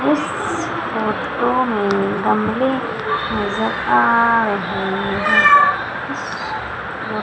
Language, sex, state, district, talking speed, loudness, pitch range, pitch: Hindi, female, Madhya Pradesh, Umaria, 65 wpm, -18 LUFS, 205-265 Hz, 235 Hz